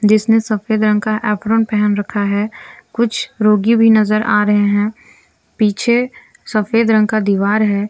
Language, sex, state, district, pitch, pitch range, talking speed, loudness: Hindi, female, Jharkhand, Garhwa, 215 Hz, 210-225 Hz, 160 wpm, -15 LUFS